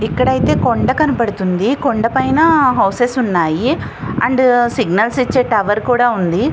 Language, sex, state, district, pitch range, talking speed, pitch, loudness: Telugu, female, Andhra Pradesh, Visakhapatnam, 205-255 Hz, 120 wpm, 240 Hz, -14 LUFS